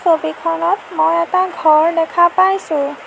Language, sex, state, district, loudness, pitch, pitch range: Assamese, female, Assam, Sonitpur, -15 LUFS, 335 Hz, 315-370 Hz